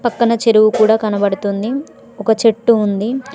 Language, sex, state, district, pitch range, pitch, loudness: Telugu, female, Telangana, Mahabubabad, 210-235 Hz, 220 Hz, -15 LUFS